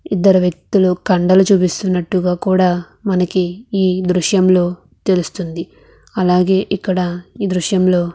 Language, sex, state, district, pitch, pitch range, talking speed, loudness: Telugu, female, Andhra Pradesh, Krishna, 185 Hz, 180-190 Hz, 95 wpm, -16 LUFS